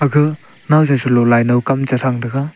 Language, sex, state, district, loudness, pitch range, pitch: Wancho, male, Arunachal Pradesh, Longding, -15 LUFS, 120-150 Hz, 135 Hz